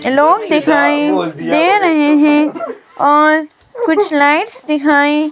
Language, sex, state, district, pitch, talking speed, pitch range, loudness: Hindi, female, Himachal Pradesh, Shimla, 300 Hz, 110 wpm, 295-325 Hz, -12 LUFS